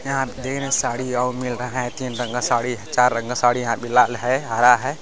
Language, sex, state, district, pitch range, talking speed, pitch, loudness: Hindi, male, Bihar, Lakhisarai, 120-130 Hz, 275 wpm, 125 Hz, -21 LUFS